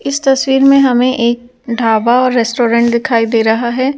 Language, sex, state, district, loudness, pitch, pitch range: Hindi, female, Delhi, New Delhi, -12 LUFS, 245 Hz, 235-265 Hz